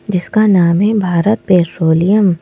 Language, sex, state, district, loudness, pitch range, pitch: Hindi, male, Madhya Pradesh, Bhopal, -12 LUFS, 170-210 Hz, 185 Hz